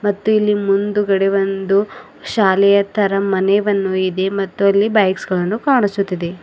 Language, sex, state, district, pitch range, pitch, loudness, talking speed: Kannada, female, Karnataka, Bidar, 195-205 Hz, 200 Hz, -16 LUFS, 130 wpm